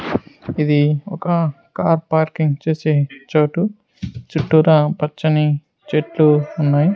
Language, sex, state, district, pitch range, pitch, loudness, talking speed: Telugu, male, Andhra Pradesh, Sri Satya Sai, 150-165 Hz, 155 Hz, -18 LUFS, 85 wpm